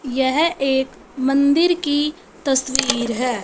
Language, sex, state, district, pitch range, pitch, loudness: Hindi, female, Punjab, Fazilka, 260-295 Hz, 270 Hz, -19 LUFS